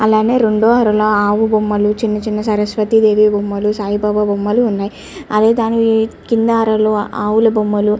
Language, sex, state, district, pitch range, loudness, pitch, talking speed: Telugu, female, Andhra Pradesh, Chittoor, 210-225 Hz, -14 LUFS, 215 Hz, 125 wpm